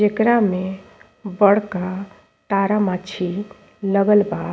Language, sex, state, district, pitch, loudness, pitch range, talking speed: Bhojpuri, female, Uttar Pradesh, Ghazipur, 200 Hz, -19 LUFS, 185-210 Hz, 95 wpm